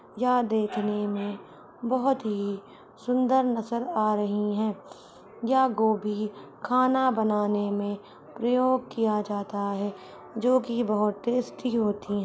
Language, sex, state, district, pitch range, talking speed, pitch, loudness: Hindi, female, Uttar Pradesh, Budaun, 205-245 Hz, 115 wpm, 215 Hz, -27 LUFS